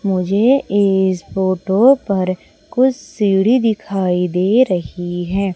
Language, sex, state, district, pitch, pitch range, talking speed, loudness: Hindi, female, Madhya Pradesh, Umaria, 195 Hz, 185-225 Hz, 110 wpm, -16 LUFS